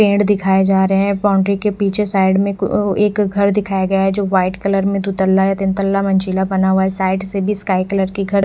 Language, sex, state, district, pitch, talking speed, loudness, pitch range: Hindi, female, Odisha, Khordha, 195 Hz, 250 wpm, -16 LUFS, 190-200 Hz